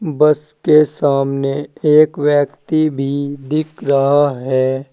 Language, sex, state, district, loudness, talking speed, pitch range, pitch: Hindi, male, Uttar Pradesh, Saharanpur, -15 LUFS, 110 wpm, 140-150 Hz, 145 Hz